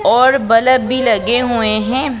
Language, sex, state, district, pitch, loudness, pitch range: Hindi, female, Punjab, Pathankot, 245 Hz, -13 LUFS, 230-255 Hz